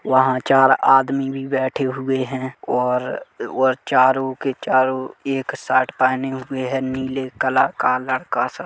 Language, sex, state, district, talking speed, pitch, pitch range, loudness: Hindi, male, Chhattisgarh, Kabirdham, 150 wpm, 130 Hz, 130-135 Hz, -20 LUFS